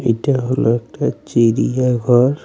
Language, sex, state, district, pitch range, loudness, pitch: Bengali, male, West Bengal, Alipurduar, 115-130 Hz, -16 LUFS, 125 Hz